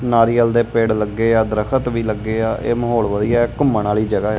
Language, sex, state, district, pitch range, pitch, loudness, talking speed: Punjabi, male, Punjab, Kapurthala, 110-120 Hz, 115 Hz, -17 LUFS, 230 wpm